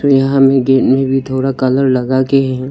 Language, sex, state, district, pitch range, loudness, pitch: Hindi, male, Arunachal Pradesh, Lower Dibang Valley, 130-135 Hz, -12 LUFS, 135 Hz